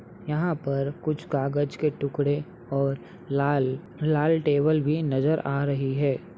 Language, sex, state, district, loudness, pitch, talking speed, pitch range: Hindi, male, Uttar Pradesh, Budaun, -26 LUFS, 145 Hz, 140 wpm, 140-155 Hz